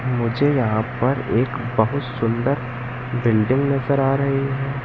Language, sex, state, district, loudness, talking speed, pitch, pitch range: Hindi, male, Madhya Pradesh, Katni, -21 LUFS, 135 wpm, 125 Hz, 120-135 Hz